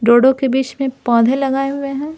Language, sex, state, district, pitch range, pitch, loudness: Hindi, female, Bihar, Patna, 255-275 Hz, 265 Hz, -16 LUFS